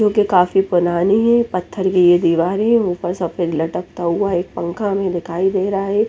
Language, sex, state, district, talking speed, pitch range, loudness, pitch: Hindi, female, Chandigarh, Chandigarh, 185 wpm, 175-200 Hz, -17 LUFS, 185 Hz